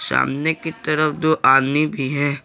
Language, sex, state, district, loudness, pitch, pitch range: Hindi, male, Jharkhand, Garhwa, -18 LUFS, 150 Hz, 140-155 Hz